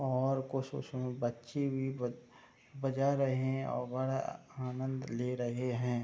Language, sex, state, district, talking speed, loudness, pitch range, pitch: Hindi, male, Bihar, Madhepura, 140 wpm, -36 LUFS, 125-135 Hz, 130 Hz